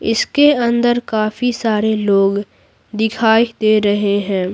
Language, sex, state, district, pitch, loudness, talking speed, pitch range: Hindi, female, Bihar, Patna, 220 Hz, -15 LUFS, 120 wpm, 205-235 Hz